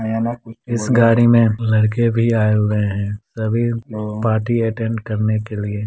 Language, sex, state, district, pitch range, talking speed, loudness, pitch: Hindi, female, Bihar, Muzaffarpur, 105-115 Hz, 145 wpm, -18 LUFS, 110 Hz